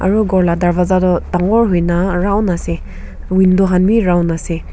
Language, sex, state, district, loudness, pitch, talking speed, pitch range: Nagamese, female, Nagaland, Kohima, -14 LUFS, 180 Hz, 175 wpm, 175-190 Hz